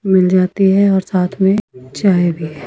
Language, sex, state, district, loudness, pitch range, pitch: Hindi, female, Himachal Pradesh, Shimla, -14 LUFS, 175-195 Hz, 185 Hz